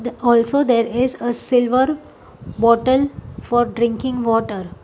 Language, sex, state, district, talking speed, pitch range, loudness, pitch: English, female, Telangana, Hyderabad, 125 wpm, 230-255 Hz, -18 LUFS, 240 Hz